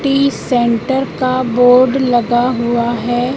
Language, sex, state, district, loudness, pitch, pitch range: Hindi, female, Madhya Pradesh, Katni, -14 LUFS, 245 Hz, 240-260 Hz